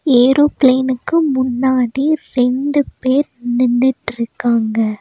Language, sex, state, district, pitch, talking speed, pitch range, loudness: Tamil, female, Tamil Nadu, Nilgiris, 255 Hz, 60 wpm, 245-280 Hz, -15 LUFS